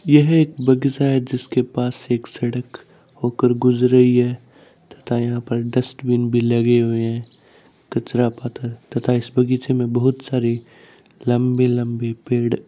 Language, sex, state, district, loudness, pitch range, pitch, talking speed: Hindi, male, Bihar, Kishanganj, -19 LUFS, 120-125 Hz, 125 Hz, 150 wpm